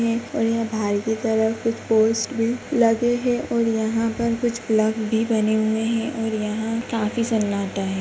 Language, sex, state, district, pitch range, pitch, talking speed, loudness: Hindi, female, Bihar, Begusarai, 220-230 Hz, 225 Hz, 180 wpm, -22 LUFS